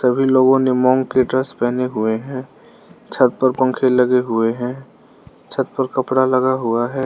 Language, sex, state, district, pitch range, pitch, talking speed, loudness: Hindi, male, Arunachal Pradesh, Lower Dibang Valley, 125-130 Hz, 130 Hz, 170 wpm, -17 LUFS